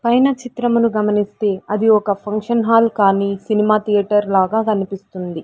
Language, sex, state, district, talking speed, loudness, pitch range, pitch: Telugu, female, Andhra Pradesh, Sri Satya Sai, 130 wpm, -17 LUFS, 200-230 Hz, 210 Hz